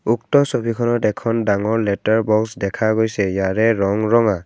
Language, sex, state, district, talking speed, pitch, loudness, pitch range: Assamese, male, Assam, Kamrup Metropolitan, 150 wpm, 110 Hz, -18 LUFS, 100-115 Hz